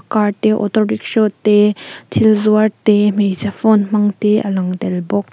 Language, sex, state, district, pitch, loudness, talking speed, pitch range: Mizo, female, Mizoram, Aizawl, 210 Hz, -15 LUFS, 180 wpm, 205-215 Hz